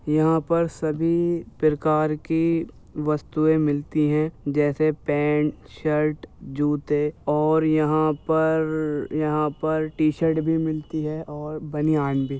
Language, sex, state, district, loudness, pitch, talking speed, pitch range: Hindi, male, Uttar Pradesh, Jyotiba Phule Nagar, -23 LUFS, 155 Hz, 115 wpm, 150-160 Hz